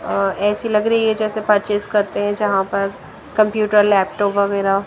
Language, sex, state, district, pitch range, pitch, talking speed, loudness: Hindi, female, Punjab, Kapurthala, 200-215 Hz, 205 Hz, 160 wpm, -18 LUFS